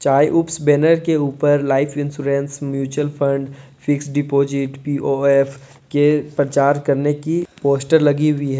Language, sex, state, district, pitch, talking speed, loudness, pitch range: Hindi, male, Jharkhand, Deoghar, 145 Hz, 145 wpm, -18 LUFS, 140-145 Hz